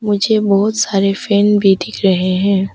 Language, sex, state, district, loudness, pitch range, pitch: Hindi, female, Arunachal Pradesh, Papum Pare, -14 LUFS, 195-210 Hz, 200 Hz